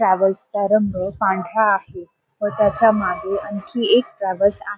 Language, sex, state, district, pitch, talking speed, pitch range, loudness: Marathi, female, Maharashtra, Solapur, 200 Hz, 140 wpm, 190-215 Hz, -19 LUFS